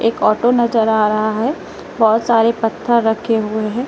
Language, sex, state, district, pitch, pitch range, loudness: Hindi, female, Uttar Pradesh, Lalitpur, 225 Hz, 220-235 Hz, -15 LUFS